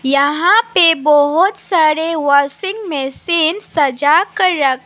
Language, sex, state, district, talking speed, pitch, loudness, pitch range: Hindi, female, Assam, Sonitpur, 100 wpm, 320 Hz, -13 LUFS, 285-365 Hz